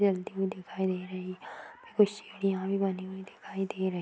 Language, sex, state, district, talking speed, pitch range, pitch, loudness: Hindi, female, Bihar, East Champaran, 240 wpm, 185-195 Hz, 190 Hz, -32 LUFS